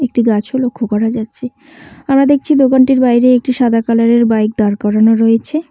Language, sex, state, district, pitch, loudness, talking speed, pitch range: Bengali, female, West Bengal, Cooch Behar, 245 Hz, -12 LUFS, 170 wpm, 225-265 Hz